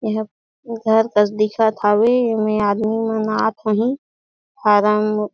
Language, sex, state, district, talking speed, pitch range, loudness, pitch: Surgujia, female, Chhattisgarh, Sarguja, 125 wpm, 210-225 Hz, -18 LUFS, 215 Hz